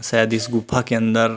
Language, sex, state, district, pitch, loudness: Chhattisgarhi, male, Chhattisgarh, Rajnandgaon, 115 Hz, -20 LUFS